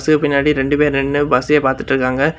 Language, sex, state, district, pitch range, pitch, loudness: Tamil, male, Tamil Nadu, Kanyakumari, 135-150 Hz, 145 Hz, -15 LUFS